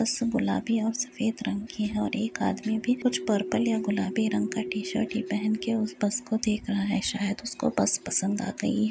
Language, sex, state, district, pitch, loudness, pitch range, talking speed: Hindi, female, Uttar Pradesh, Jyotiba Phule Nagar, 220 Hz, -28 LUFS, 210-230 Hz, 230 wpm